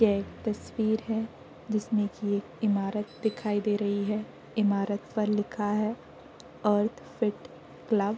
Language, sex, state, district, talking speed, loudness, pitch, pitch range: Hindi, female, Uttar Pradesh, Deoria, 145 wpm, -30 LUFS, 210 Hz, 205-220 Hz